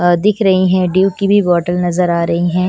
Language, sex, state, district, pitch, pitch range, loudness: Hindi, female, Punjab, Kapurthala, 180 Hz, 175-190 Hz, -13 LUFS